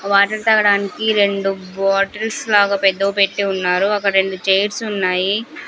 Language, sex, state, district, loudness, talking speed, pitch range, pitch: Telugu, female, Andhra Pradesh, Sri Satya Sai, -16 LUFS, 135 wpm, 195-210 Hz, 200 Hz